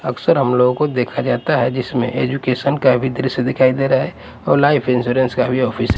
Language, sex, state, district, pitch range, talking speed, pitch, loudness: Hindi, male, Punjab, Pathankot, 125-135 Hz, 230 wpm, 130 Hz, -17 LUFS